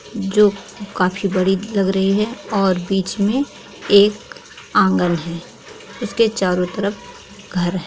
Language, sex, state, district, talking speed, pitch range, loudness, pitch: Hindi, female, Bihar, East Champaran, 130 wpm, 185-205 Hz, -18 LUFS, 195 Hz